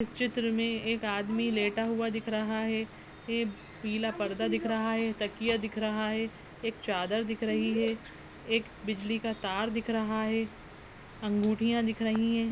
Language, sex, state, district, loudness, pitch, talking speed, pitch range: Hindi, female, Uttarakhand, Tehri Garhwal, -31 LUFS, 225 Hz, 170 wpm, 215-225 Hz